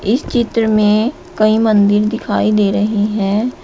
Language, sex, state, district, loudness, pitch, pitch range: Hindi, female, Uttar Pradesh, Shamli, -14 LUFS, 215 Hz, 210-225 Hz